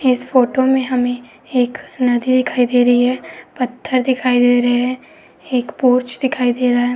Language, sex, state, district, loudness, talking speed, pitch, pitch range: Hindi, female, Uttar Pradesh, Etah, -16 LUFS, 180 wpm, 250 Hz, 245-255 Hz